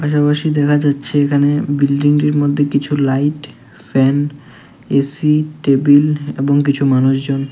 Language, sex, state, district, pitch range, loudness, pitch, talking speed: Bengali, male, Tripura, West Tripura, 140-145 Hz, -15 LUFS, 145 Hz, 105 wpm